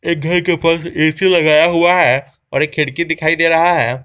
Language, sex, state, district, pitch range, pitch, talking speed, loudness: Hindi, male, Jharkhand, Garhwa, 155-170 Hz, 165 Hz, 205 wpm, -14 LUFS